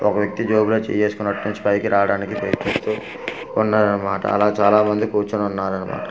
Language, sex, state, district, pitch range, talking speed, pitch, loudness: Telugu, male, Andhra Pradesh, Manyam, 100-105 Hz, 145 wpm, 105 Hz, -20 LUFS